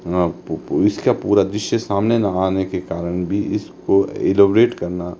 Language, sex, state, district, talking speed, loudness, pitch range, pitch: Hindi, male, Himachal Pradesh, Shimla, 140 wpm, -18 LUFS, 90-100 Hz, 95 Hz